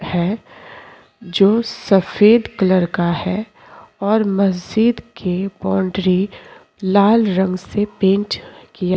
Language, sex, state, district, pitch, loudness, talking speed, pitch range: Hindi, female, Uttar Pradesh, Jyotiba Phule Nagar, 195 Hz, -17 LUFS, 105 wpm, 185-210 Hz